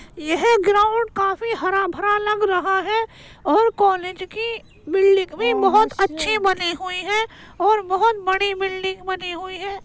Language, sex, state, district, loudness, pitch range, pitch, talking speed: Hindi, male, Uttar Pradesh, Jyotiba Phule Nagar, -20 LUFS, 375-430 Hz, 390 Hz, 145 wpm